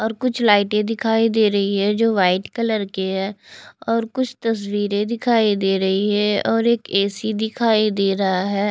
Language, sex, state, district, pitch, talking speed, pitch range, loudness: Hindi, female, Chandigarh, Chandigarh, 210 Hz, 185 wpm, 200-225 Hz, -19 LUFS